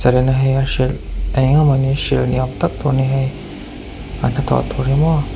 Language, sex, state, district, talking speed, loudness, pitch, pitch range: Mizo, male, Mizoram, Aizawl, 215 wpm, -17 LUFS, 135 Hz, 130-140 Hz